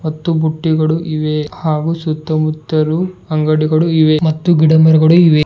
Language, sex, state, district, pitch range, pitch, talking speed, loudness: Kannada, male, Karnataka, Bidar, 155-160 Hz, 155 Hz, 145 wpm, -13 LUFS